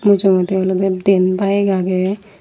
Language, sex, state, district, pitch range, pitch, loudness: Chakma, female, Tripura, Unakoti, 185-200 Hz, 195 Hz, -16 LUFS